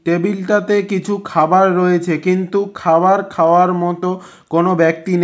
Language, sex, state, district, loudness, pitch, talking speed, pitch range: Bengali, male, West Bengal, Cooch Behar, -15 LUFS, 180 Hz, 125 wpm, 170-195 Hz